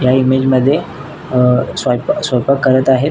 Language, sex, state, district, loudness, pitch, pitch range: Marathi, male, Maharashtra, Nagpur, -13 LUFS, 130 Hz, 125-140 Hz